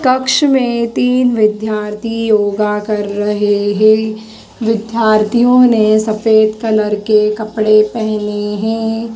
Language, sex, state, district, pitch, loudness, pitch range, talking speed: Hindi, female, Madhya Pradesh, Dhar, 215 Hz, -13 LUFS, 210-230 Hz, 105 wpm